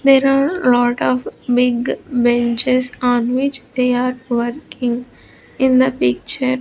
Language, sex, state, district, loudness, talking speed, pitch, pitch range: English, female, Andhra Pradesh, Sri Satya Sai, -17 LUFS, 125 wpm, 250 Hz, 240-260 Hz